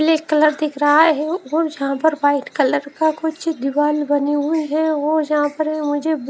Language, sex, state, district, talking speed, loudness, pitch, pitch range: Hindi, female, Haryana, Rohtak, 190 wpm, -18 LUFS, 300 Hz, 290-315 Hz